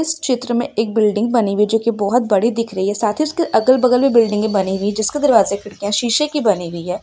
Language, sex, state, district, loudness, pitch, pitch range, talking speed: Hindi, female, West Bengal, Dakshin Dinajpur, -17 LUFS, 225 Hz, 205-250 Hz, 265 wpm